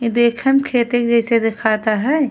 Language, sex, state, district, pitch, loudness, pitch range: Bhojpuri, female, Uttar Pradesh, Ghazipur, 235 Hz, -16 LUFS, 230-255 Hz